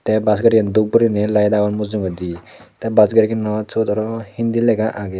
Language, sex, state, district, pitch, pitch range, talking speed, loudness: Chakma, male, Tripura, Dhalai, 110 Hz, 105-115 Hz, 185 wpm, -17 LUFS